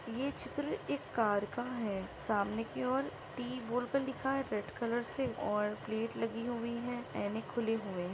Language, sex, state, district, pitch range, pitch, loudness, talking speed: Hindi, female, Maharashtra, Nagpur, 210-245 Hz, 235 Hz, -37 LUFS, 190 wpm